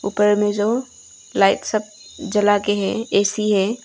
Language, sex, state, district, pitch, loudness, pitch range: Hindi, female, Arunachal Pradesh, Longding, 210 Hz, -19 LUFS, 205-215 Hz